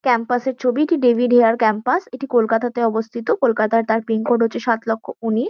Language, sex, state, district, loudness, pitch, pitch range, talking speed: Bengali, female, West Bengal, Kolkata, -18 LUFS, 235 Hz, 225-245 Hz, 175 wpm